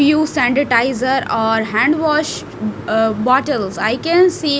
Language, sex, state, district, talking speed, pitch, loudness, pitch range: English, female, Punjab, Fazilka, 145 wpm, 265 Hz, -16 LUFS, 225-305 Hz